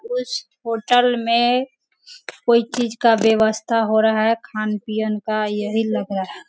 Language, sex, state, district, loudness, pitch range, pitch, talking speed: Hindi, female, Bihar, Sitamarhi, -19 LUFS, 220-245 Hz, 225 Hz, 150 wpm